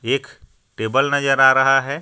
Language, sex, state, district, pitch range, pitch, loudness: Hindi, male, Jharkhand, Ranchi, 135-140 Hz, 135 Hz, -16 LUFS